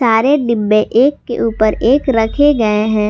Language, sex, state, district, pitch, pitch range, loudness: Hindi, female, Jharkhand, Garhwa, 225 Hz, 215-265 Hz, -13 LUFS